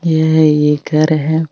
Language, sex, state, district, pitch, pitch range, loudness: Marwari, female, Rajasthan, Nagaur, 155 Hz, 150-160 Hz, -13 LUFS